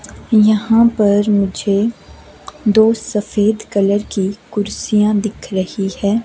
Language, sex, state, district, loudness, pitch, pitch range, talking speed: Hindi, female, Himachal Pradesh, Shimla, -16 LUFS, 210 Hz, 200-220 Hz, 105 wpm